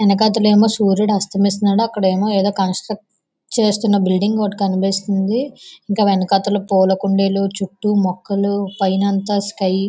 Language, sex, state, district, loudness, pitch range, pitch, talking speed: Telugu, female, Andhra Pradesh, Visakhapatnam, -17 LUFS, 195-210 Hz, 200 Hz, 110 wpm